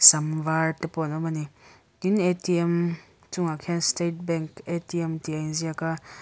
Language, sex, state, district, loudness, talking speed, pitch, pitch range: Mizo, female, Mizoram, Aizawl, -26 LUFS, 195 wpm, 165 Hz, 155-170 Hz